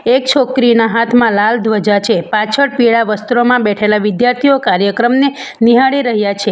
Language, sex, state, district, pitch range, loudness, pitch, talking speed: Gujarati, female, Gujarat, Valsad, 215-250 Hz, -12 LUFS, 235 Hz, 140 wpm